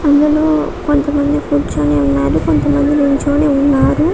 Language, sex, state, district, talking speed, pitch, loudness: Telugu, female, Telangana, Karimnagar, 130 wpm, 285 Hz, -13 LUFS